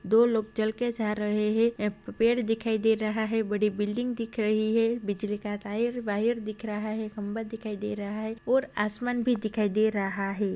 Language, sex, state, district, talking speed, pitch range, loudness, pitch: Hindi, female, Maharashtra, Sindhudurg, 215 wpm, 210-230 Hz, -28 LUFS, 215 Hz